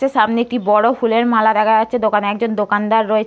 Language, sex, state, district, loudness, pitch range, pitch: Bengali, female, West Bengal, Purulia, -15 LUFS, 215-235 Hz, 220 Hz